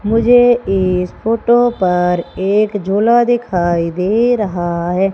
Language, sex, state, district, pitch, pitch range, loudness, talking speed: Hindi, female, Madhya Pradesh, Umaria, 200 Hz, 180-230 Hz, -14 LUFS, 115 wpm